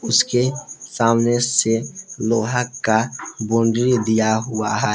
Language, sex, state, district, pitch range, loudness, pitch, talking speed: Hindi, male, Jharkhand, Palamu, 110-125 Hz, -19 LUFS, 115 Hz, 110 wpm